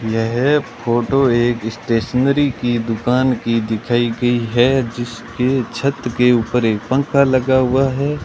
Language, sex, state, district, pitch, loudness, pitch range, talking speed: Hindi, male, Rajasthan, Bikaner, 120 Hz, -17 LUFS, 115-130 Hz, 140 wpm